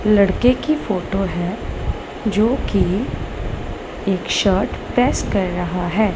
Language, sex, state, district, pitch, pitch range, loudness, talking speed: Hindi, female, Punjab, Pathankot, 200 Hz, 180-220 Hz, -20 LUFS, 115 wpm